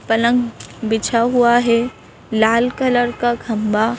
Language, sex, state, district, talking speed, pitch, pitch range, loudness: Hindi, female, Madhya Pradesh, Bhopal, 120 wpm, 235 Hz, 225-245 Hz, -17 LUFS